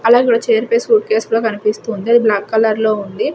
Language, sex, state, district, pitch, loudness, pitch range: Telugu, female, Andhra Pradesh, Sri Satya Sai, 220 Hz, -15 LUFS, 215-230 Hz